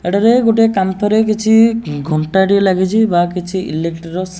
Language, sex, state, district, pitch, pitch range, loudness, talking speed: Odia, male, Odisha, Nuapada, 190 Hz, 175-220 Hz, -14 LUFS, 190 wpm